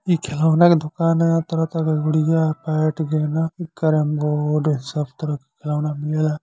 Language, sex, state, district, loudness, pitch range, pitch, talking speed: Bhojpuri, male, Uttar Pradesh, Gorakhpur, -20 LUFS, 150-160 Hz, 155 Hz, 150 wpm